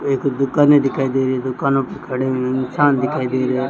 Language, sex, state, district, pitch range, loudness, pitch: Hindi, male, Rajasthan, Bikaner, 130-140 Hz, -18 LUFS, 135 Hz